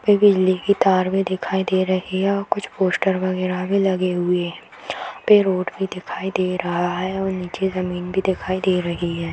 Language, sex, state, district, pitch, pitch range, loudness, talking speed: Hindi, female, Bihar, Bhagalpur, 185 Hz, 180-190 Hz, -21 LUFS, 220 wpm